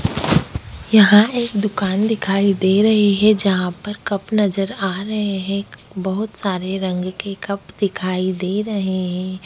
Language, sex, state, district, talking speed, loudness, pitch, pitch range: Hindi, female, Goa, North and South Goa, 145 wpm, -18 LUFS, 200 Hz, 190-210 Hz